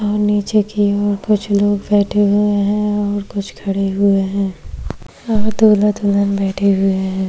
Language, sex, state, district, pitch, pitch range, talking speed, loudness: Hindi, female, Maharashtra, Chandrapur, 205 Hz, 200-210 Hz, 155 wpm, -16 LUFS